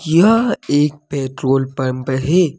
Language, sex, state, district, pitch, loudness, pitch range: Hindi, male, Jharkhand, Deoghar, 145 Hz, -17 LUFS, 135-175 Hz